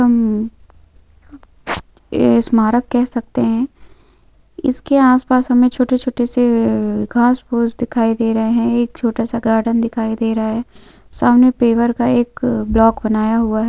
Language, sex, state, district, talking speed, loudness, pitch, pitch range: Hindi, female, Chhattisgarh, Bilaspur, 160 wpm, -16 LUFS, 235 Hz, 225-245 Hz